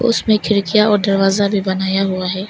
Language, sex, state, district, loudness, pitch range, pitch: Hindi, female, Arunachal Pradesh, Longding, -15 LUFS, 190-210 Hz, 200 Hz